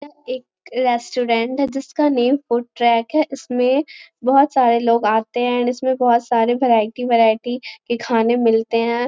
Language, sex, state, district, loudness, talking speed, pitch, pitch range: Hindi, female, Bihar, Jamui, -18 LUFS, 165 wpm, 245 Hz, 235-260 Hz